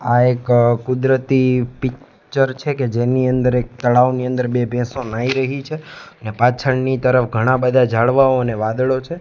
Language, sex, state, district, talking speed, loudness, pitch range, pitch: Gujarati, male, Gujarat, Gandhinagar, 165 wpm, -17 LUFS, 120-130 Hz, 125 Hz